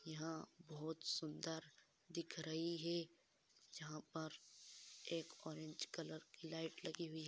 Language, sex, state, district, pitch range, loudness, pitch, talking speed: Hindi, female, Andhra Pradesh, Anantapur, 155-165 Hz, -49 LUFS, 160 Hz, 125 wpm